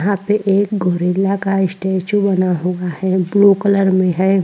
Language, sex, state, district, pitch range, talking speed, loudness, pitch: Hindi, female, Chhattisgarh, Korba, 185-200 Hz, 160 wpm, -16 LUFS, 190 Hz